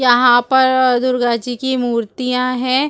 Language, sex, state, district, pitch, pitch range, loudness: Hindi, female, Chhattisgarh, Rajnandgaon, 250 Hz, 245-260 Hz, -15 LUFS